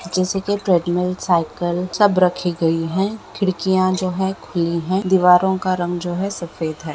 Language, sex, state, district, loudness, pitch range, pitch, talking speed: Hindi, female, Rajasthan, Nagaur, -19 LUFS, 175-190 Hz, 180 Hz, 175 wpm